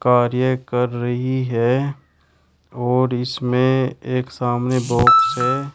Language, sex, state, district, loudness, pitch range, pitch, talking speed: Hindi, male, Uttar Pradesh, Shamli, -19 LUFS, 120-130 Hz, 125 Hz, 105 wpm